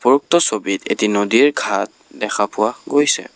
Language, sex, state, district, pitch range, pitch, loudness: Assamese, male, Assam, Kamrup Metropolitan, 105-145 Hz, 125 Hz, -17 LUFS